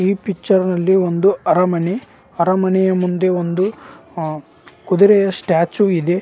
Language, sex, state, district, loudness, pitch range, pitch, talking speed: Kannada, male, Karnataka, Raichur, -16 LUFS, 175-195 Hz, 185 Hz, 85 wpm